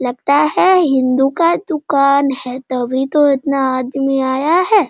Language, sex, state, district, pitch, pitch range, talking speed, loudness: Hindi, female, Bihar, Sitamarhi, 275 Hz, 260-305 Hz, 160 wpm, -14 LUFS